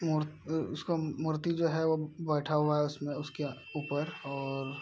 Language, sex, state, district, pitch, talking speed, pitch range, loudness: Hindi, male, Bihar, Araria, 150 Hz, 185 wpm, 145-160 Hz, -33 LUFS